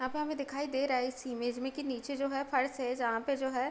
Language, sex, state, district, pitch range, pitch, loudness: Hindi, female, Uttar Pradesh, Deoria, 255-275 Hz, 265 Hz, -34 LUFS